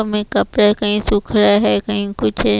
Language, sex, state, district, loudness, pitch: Hindi, female, Chhattisgarh, Raipur, -15 LUFS, 205 Hz